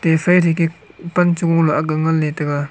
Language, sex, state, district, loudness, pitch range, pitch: Wancho, male, Arunachal Pradesh, Longding, -17 LUFS, 155-170 Hz, 165 Hz